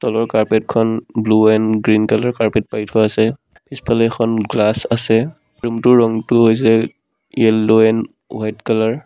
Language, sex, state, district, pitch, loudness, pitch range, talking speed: Assamese, male, Assam, Sonitpur, 110 Hz, -15 LUFS, 110-115 Hz, 160 wpm